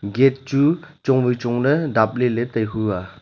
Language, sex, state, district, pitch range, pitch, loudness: Wancho, male, Arunachal Pradesh, Longding, 110-135 Hz, 125 Hz, -20 LUFS